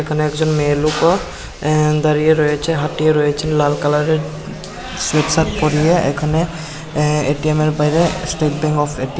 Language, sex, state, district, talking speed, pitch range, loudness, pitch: Bengali, male, Tripura, Unakoti, 150 wpm, 150-155 Hz, -16 LUFS, 150 Hz